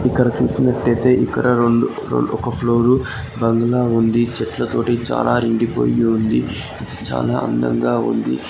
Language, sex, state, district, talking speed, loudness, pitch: Telugu, male, Andhra Pradesh, Guntur, 115 wpm, -18 LUFS, 115 Hz